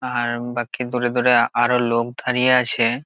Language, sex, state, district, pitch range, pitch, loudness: Bengali, male, West Bengal, Jalpaiguri, 120-125 Hz, 120 Hz, -19 LUFS